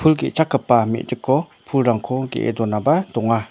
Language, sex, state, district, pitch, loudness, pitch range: Garo, male, Meghalaya, North Garo Hills, 125 Hz, -20 LUFS, 115-140 Hz